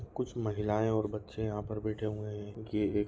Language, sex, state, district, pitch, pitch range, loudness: Hindi, male, Jharkhand, Sahebganj, 105 Hz, 105-110 Hz, -35 LUFS